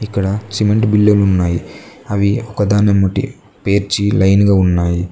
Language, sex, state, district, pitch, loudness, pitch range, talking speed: Telugu, male, Telangana, Mahabubabad, 100 Hz, -14 LUFS, 95-105 Hz, 130 wpm